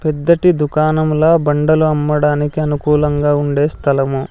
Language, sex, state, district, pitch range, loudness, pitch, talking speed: Telugu, male, Andhra Pradesh, Sri Satya Sai, 145-155 Hz, -14 LUFS, 150 Hz, 100 wpm